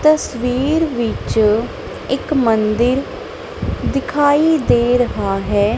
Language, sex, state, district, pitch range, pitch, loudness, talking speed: Punjabi, female, Punjab, Kapurthala, 225-310 Hz, 255 Hz, -17 LUFS, 85 wpm